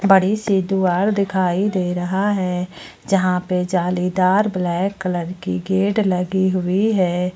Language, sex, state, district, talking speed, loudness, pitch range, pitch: Hindi, female, Jharkhand, Ranchi, 140 wpm, -19 LUFS, 180-195 Hz, 185 Hz